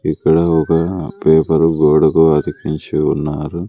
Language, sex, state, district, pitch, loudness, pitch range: Telugu, male, Andhra Pradesh, Sri Satya Sai, 80 Hz, -14 LUFS, 75-80 Hz